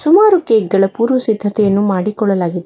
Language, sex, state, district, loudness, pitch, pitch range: Kannada, female, Karnataka, Bangalore, -14 LUFS, 210 Hz, 195-235 Hz